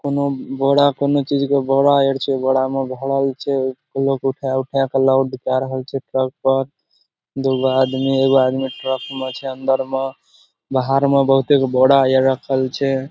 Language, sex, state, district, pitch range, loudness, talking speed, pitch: Maithili, male, Bihar, Supaul, 130-135 Hz, -18 LUFS, 175 wpm, 135 Hz